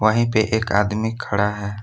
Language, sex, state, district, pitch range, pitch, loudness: Hindi, male, Jharkhand, Palamu, 105-110 Hz, 110 Hz, -20 LUFS